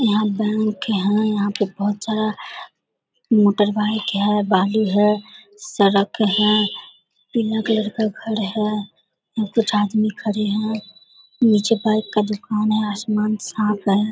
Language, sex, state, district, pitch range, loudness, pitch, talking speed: Hindi, female, Bihar, Vaishali, 205-215 Hz, -20 LUFS, 210 Hz, 135 wpm